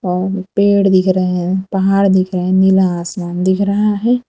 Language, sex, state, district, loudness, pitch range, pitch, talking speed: Hindi, female, Gujarat, Valsad, -14 LUFS, 185-195 Hz, 190 Hz, 170 wpm